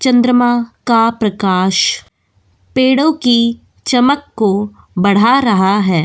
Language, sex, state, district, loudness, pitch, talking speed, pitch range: Hindi, female, Goa, North and South Goa, -13 LUFS, 225 Hz, 100 wpm, 190-245 Hz